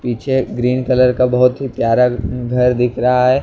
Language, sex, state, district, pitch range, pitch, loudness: Hindi, male, Maharashtra, Mumbai Suburban, 125-130 Hz, 125 Hz, -15 LUFS